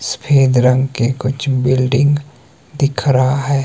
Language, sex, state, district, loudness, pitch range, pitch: Hindi, male, Himachal Pradesh, Shimla, -15 LUFS, 130-140 Hz, 130 Hz